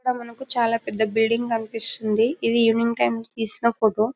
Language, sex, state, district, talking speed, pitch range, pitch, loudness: Telugu, female, Telangana, Karimnagar, 185 wpm, 220-235 Hz, 230 Hz, -23 LUFS